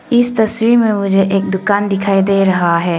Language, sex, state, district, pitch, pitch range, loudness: Hindi, female, Arunachal Pradesh, Longding, 195 Hz, 195-220 Hz, -13 LUFS